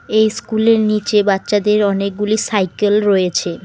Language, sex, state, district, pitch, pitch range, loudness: Bengali, female, West Bengal, Alipurduar, 210 Hz, 200-215 Hz, -15 LUFS